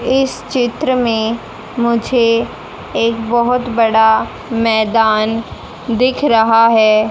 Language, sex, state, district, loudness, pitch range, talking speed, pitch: Hindi, female, Haryana, Jhajjar, -14 LUFS, 225-245 Hz, 95 wpm, 230 Hz